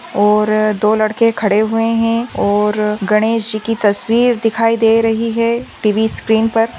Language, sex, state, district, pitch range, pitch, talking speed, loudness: Hindi, female, Maharashtra, Aurangabad, 215-230 Hz, 225 Hz, 160 wpm, -14 LUFS